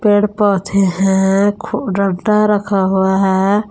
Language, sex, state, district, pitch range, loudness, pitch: Hindi, female, Jharkhand, Palamu, 190-205 Hz, -14 LUFS, 200 Hz